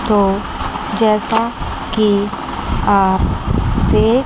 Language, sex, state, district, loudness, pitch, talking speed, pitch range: Hindi, female, Chandigarh, Chandigarh, -16 LUFS, 210 Hz, 70 wpm, 200-225 Hz